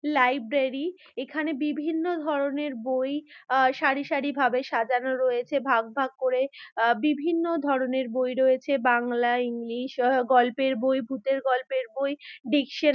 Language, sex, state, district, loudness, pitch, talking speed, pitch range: Bengali, female, West Bengal, Dakshin Dinajpur, -26 LUFS, 265 Hz, 140 wpm, 255-290 Hz